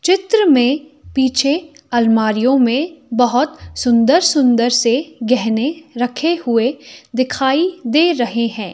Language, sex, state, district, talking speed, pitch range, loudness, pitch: Hindi, female, Himachal Pradesh, Shimla, 110 wpm, 240-310 Hz, -16 LUFS, 260 Hz